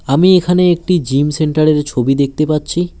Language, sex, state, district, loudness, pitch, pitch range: Bengali, male, West Bengal, Alipurduar, -13 LUFS, 155 Hz, 145-175 Hz